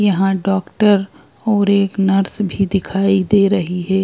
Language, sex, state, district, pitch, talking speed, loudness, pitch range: Hindi, female, Madhya Pradesh, Bhopal, 195 Hz, 150 wpm, -16 LUFS, 190-200 Hz